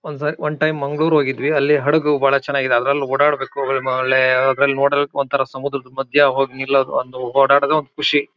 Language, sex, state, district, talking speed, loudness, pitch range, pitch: Kannada, male, Karnataka, Shimoga, 195 wpm, -17 LUFS, 135-145 Hz, 140 Hz